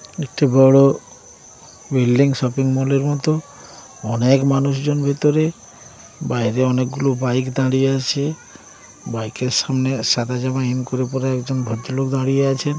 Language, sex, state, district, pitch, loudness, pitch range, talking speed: Bengali, male, West Bengal, Paschim Medinipur, 135 Hz, -18 LUFS, 125-140 Hz, 125 wpm